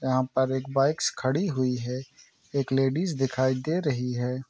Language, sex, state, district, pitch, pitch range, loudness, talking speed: Hindi, male, Bihar, Saran, 130 Hz, 130-140 Hz, -27 LUFS, 175 wpm